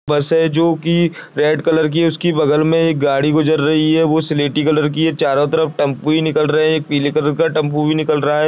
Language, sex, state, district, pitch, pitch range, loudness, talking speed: Hindi, male, Chhattisgarh, Bastar, 155 Hz, 150-160 Hz, -15 LUFS, 260 wpm